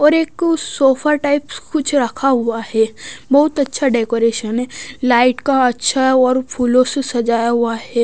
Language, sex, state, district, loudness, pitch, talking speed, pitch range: Hindi, female, Odisha, Nuapada, -16 LUFS, 255 Hz, 155 wpm, 235-280 Hz